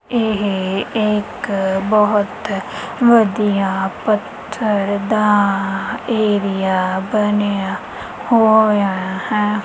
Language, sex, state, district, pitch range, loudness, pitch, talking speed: Punjabi, female, Punjab, Kapurthala, 195-215 Hz, -17 LUFS, 205 Hz, 60 wpm